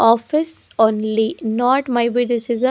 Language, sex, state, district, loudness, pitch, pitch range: English, female, Haryana, Jhajjar, -18 LUFS, 240 Hz, 225-260 Hz